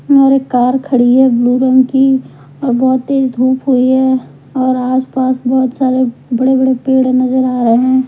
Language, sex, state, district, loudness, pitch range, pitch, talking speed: Hindi, female, Bihar, Patna, -12 LUFS, 255-265 Hz, 260 Hz, 180 wpm